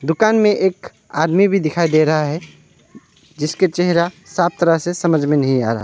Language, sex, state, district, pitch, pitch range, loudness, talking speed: Hindi, male, West Bengal, Alipurduar, 165 Hz, 155-180 Hz, -17 LUFS, 205 wpm